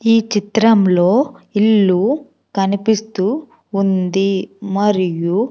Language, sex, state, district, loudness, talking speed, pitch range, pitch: Telugu, female, Andhra Pradesh, Sri Satya Sai, -16 LUFS, 65 wpm, 195-225 Hz, 205 Hz